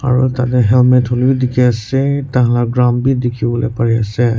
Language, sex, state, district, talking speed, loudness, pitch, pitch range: Nagamese, male, Nagaland, Kohima, 175 wpm, -14 LUFS, 125 Hz, 120-125 Hz